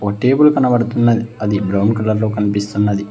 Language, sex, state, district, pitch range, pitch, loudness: Telugu, male, Telangana, Hyderabad, 105-120 Hz, 110 Hz, -15 LUFS